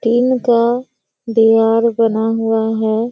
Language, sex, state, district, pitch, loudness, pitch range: Hindi, female, Bihar, Kishanganj, 225 Hz, -14 LUFS, 225-235 Hz